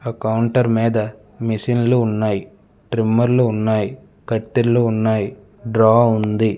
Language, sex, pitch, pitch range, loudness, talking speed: Telugu, male, 115 Hz, 110-120 Hz, -18 LUFS, 100 wpm